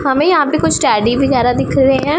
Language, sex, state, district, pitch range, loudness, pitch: Hindi, female, Punjab, Pathankot, 255-300 Hz, -13 LUFS, 270 Hz